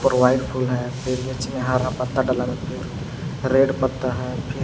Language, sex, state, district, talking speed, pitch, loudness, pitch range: Hindi, male, Jharkhand, Palamu, 140 wpm, 130 Hz, -23 LUFS, 125-130 Hz